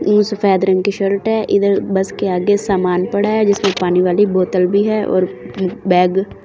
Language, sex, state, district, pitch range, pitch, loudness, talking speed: Hindi, female, Delhi, New Delhi, 185-205 Hz, 195 Hz, -15 LUFS, 195 wpm